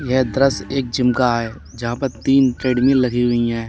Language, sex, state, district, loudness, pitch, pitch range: Hindi, male, Uttar Pradesh, Lalitpur, -18 LUFS, 125 Hz, 120-135 Hz